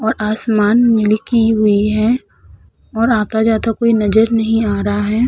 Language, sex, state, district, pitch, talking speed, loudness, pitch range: Hindi, female, Uttar Pradesh, Budaun, 220 Hz, 135 wpm, -14 LUFS, 215-230 Hz